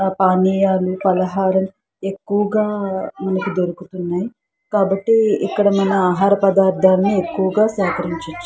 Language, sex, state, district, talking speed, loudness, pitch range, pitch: Telugu, female, Andhra Pradesh, Krishna, 90 wpm, -17 LUFS, 185-200 Hz, 195 Hz